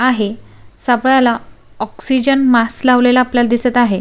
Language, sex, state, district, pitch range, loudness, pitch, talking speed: Marathi, female, Maharashtra, Sindhudurg, 235-255 Hz, -13 LUFS, 245 Hz, 120 wpm